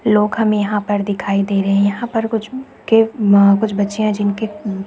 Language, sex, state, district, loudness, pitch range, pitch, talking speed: Hindi, female, Chhattisgarh, Raigarh, -16 LUFS, 200-220 Hz, 210 Hz, 185 wpm